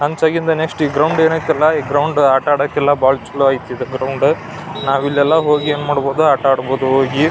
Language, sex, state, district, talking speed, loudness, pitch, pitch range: Kannada, male, Karnataka, Belgaum, 115 wpm, -15 LUFS, 145 Hz, 135-155 Hz